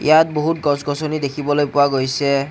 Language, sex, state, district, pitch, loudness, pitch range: Assamese, male, Assam, Kamrup Metropolitan, 145 Hz, -18 LUFS, 140-155 Hz